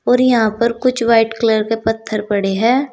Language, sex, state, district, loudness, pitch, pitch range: Hindi, female, Uttar Pradesh, Saharanpur, -15 LUFS, 225 Hz, 220-245 Hz